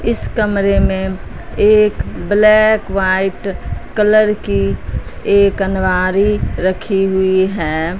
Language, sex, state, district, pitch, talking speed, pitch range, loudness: Hindi, female, Punjab, Fazilka, 195 Hz, 95 wpm, 185-210 Hz, -14 LUFS